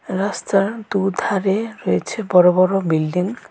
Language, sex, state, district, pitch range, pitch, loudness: Bengali, female, West Bengal, Alipurduar, 185-205 Hz, 195 Hz, -18 LUFS